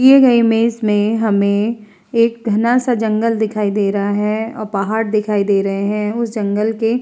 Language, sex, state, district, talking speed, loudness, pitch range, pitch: Hindi, female, Uttar Pradesh, Hamirpur, 190 wpm, -16 LUFS, 205-230 Hz, 215 Hz